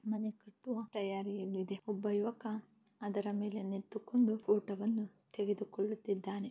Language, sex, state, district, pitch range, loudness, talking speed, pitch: Kannada, female, Karnataka, Dakshina Kannada, 200-215 Hz, -38 LUFS, 100 wpm, 210 Hz